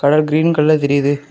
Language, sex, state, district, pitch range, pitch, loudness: Tamil, male, Tamil Nadu, Kanyakumari, 140-155 Hz, 150 Hz, -14 LUFS